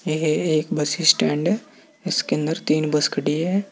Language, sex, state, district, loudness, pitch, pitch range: Hindi, male, Uttar Pradesh, Saharanpur, -21 LUFS, 155 Hz, 150-165 Hz